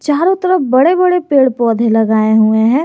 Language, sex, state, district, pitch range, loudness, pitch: Hindi, male, Jharkhand, Garhwa, 225-350 Hz, -11 LUFS, 260 Hz